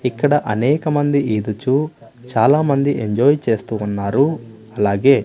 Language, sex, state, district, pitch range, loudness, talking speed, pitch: Telugu, male, Andhra Pradesh, Manyam, 110-145 Hz, -17 LUFS, 90 wpm, 125 Hz